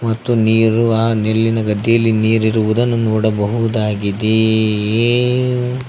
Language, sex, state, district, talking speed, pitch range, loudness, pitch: Kannada, male, Karnataka, Koppal, 70 wpm, 110-115 Hz, -15 LUFS, 110 Hz